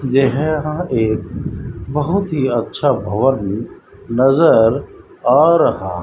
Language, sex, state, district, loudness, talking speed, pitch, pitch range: Hindi, male, Rajasthan, Bikaner, -16 LUFS, 110 wpm, 135 Hz, 110-145 Hz